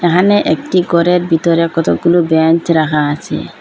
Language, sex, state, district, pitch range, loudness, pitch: Bengali, female, Assam, Hailakandi, 160-175 Hz, -13 LUFS, 170 Hz